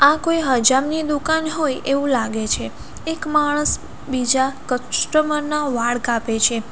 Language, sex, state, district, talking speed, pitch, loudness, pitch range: Gujarati, female, Gujarat, Valsad, 150 wpm, 275 Hz, -19 LUFS, 250-305 Hz